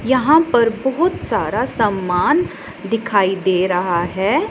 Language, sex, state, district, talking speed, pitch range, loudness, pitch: Hindi, female, Punjab, Pathankot, 120 wpm, 185-265 Hz, -17 LUFS, 225 Hz